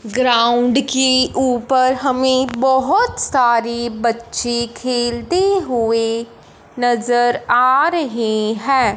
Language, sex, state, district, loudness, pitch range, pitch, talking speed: Hindi, female, Punjab, Fazilka, -16 LUFS, 235-265 Hz, 245 Hz, 85 wpm